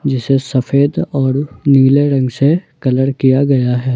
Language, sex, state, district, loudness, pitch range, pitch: Hindi, male, Jharkhand, Ranchi, -13 LUFS, 130-140 Hz, 135 Hz